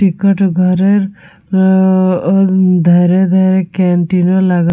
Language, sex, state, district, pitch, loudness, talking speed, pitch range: Bengali, female, West Bengal, Purulia, 185 Hz, -11 LUFS, 100 wpm, 180-190 Hz